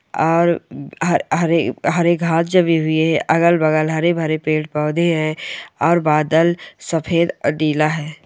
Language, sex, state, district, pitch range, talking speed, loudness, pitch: Hindi, male, Maharashtra, Solapur, 155-170 Hz, 140 wpm, -17 LUFS, 160 Hz